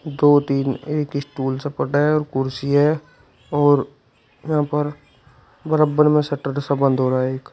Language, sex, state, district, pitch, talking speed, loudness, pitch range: Hindi, male, Uttar Pradesh, Shamli, 145 Hz, 175 wpm, -20 LUFS, 135-150 Hz